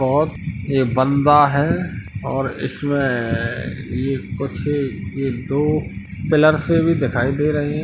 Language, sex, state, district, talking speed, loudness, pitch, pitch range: Hindi, male, Uttar Pradesh, Hamirpur, 140 wpm, -19 LUFS, 135 Hz, 125-150 Hz